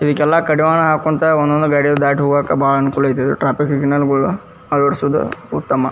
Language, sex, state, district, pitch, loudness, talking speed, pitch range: Kannada, male, Karnataka, Dharwad, 145 Hz, -15 LUFS, 150 wpm, 140-155 Hz